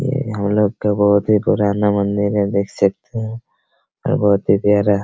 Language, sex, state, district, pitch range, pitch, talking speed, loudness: Hindi, male, Bihar, Araria, 100-105 Hz, 105 Hz, 200 wpm, -17 LUFS